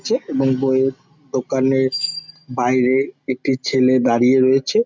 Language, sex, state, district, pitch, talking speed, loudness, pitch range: Bengali, male, West Bengal, Jalpaiguri, 130 Hz, 110 wpm, -18 LUFS, 130-135 Hz